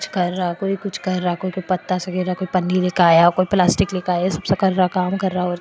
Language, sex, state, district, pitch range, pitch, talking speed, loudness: Marwari, female, Rajasthan, Churu, 180-185 Hz, 185 Hz, 215 wpm, -19 LUFS